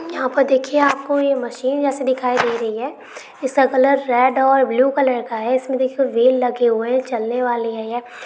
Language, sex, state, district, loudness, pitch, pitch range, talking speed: Maithili, female, Bihar, Supaul, -18 LUFS, 255 Hz, 240-270 Hz, 205 wpm